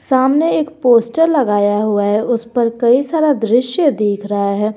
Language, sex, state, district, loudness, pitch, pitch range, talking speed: Hindi, female, Jharkhand, Garhwa, -14 LUFS, 235 Hz, 210-280 Hz, 165 wpm